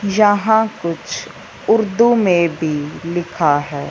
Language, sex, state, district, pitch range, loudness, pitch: Hindi, male, Punjab, Fazilka, 155-215 Hz, -17 LUFS, 175 Hz